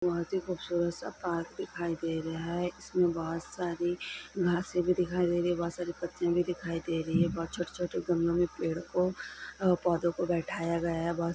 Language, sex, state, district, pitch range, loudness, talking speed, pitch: Hindi, female, Bihar, Sitamarhi, 170-180 Hz, -32 LUFS, 205 wpm, 175 Hz